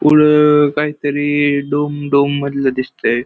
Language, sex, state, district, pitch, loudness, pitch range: Marathi, male, Maharashtra, Pune, 145 Hz, -14 LUFS, 140-150 Hz